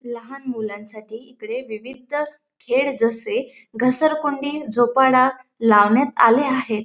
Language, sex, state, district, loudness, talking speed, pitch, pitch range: Marathi, female, Maharashtra, Dhule, -19 LUFS, 95 wpm, 255 Hz, 230-275 Hz